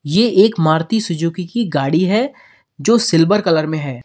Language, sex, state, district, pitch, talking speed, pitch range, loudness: Hindi, male, Uttar Pradesh, Lalitpur, 170 Hz, 175 wpm, 155-220 Hz, -16 LUFS